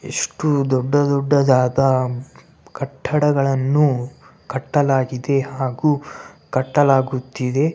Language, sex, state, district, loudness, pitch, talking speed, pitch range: Kannada, male, Karnataka, Bellary, -19 LUFS, 135 Hz, 60 wpm, 130-145 Hz